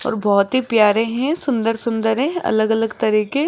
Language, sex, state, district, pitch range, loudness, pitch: Hindi, female, Rajasthan, Jaipur, 220-255 Hz, -17 LUFS, 225 Hz